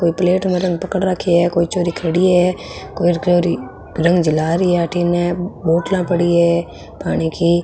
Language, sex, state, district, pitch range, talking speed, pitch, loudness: Marwari, female, Rajasthan, Nagaur, 170-180 Hz, 155 wpm, 175 Hz, -17 LUFS